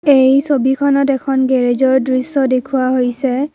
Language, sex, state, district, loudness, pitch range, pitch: Assamese, female, Assam, Kamrup Metropolitan, -14 LUFS, 255-275 Hz, 265 Hz